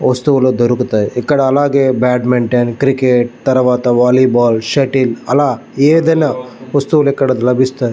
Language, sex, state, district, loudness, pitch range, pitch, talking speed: Telugu, male, Andhra Pradesh, Visakhapatnam, -12 LUFS, 125-140 Hz, 130 Hz, 115 wpm